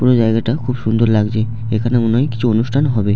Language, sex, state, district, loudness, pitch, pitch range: Bengali, male, West Bengal, Jalpaiguri, -16 LUFS, 115 Hz, 110-120 Hz